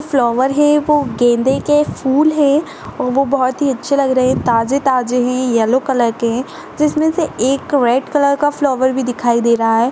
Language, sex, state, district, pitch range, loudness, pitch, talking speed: Kumaoni, female, Uttarakhand, Tehri Garhwal, 245-285 Hz, -15 LUFS, 265 Hz, 205 wpm